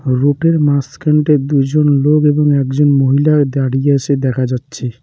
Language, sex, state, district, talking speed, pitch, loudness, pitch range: Bengali, male, West Bengal, Cooch Behar, 130 wpm, 140 Hz, -13 LUFS, 135-150 Hz